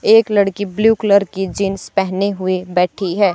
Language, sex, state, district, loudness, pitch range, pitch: Hindi, female, Haryana, Charkhi Dadri, -16 LUFS, 185-205 Hz, 195 Hz